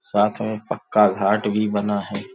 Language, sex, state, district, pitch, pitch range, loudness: Hindi, male, Uttar Pradesh, Gorakhpur, 105 Hz, 100-105 Hz, -21 LUFS